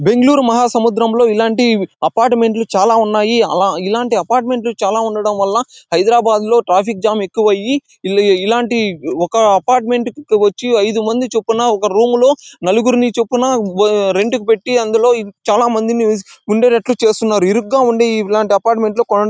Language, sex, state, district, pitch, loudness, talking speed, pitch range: Telugu, male, Andhra Pradesh, Anantapur, 225 Hz, -13 LUFS, 140 wpm, 210-240 Hz